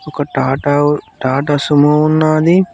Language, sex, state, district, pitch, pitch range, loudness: Telugu, male, Telangana, Mahabubabad, 145 Hz, 145-155 Hz, -13 LUFS